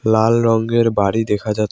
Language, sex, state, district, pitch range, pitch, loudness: Bengali, male, West Bengal, Cooch Behar, 105-115 Hz, 110 Hz, -16 LUFS